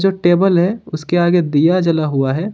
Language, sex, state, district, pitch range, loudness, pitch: Hindi, male, Jharkhand, Ranchi, 155-185 Hz, -15 LUFS, 175 Hz